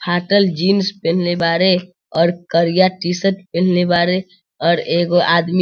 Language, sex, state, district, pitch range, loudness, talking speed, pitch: Hindi, male, Bihar, Sitamarhi, 170-185 Hz, -16 LUFS, 140 wpm, 175 Hz